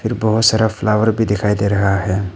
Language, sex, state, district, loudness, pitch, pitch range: Hindi, male, Arunachal Pradesh, Papum Pare, -16 LUFS, 105 Hz, 100-110 Hz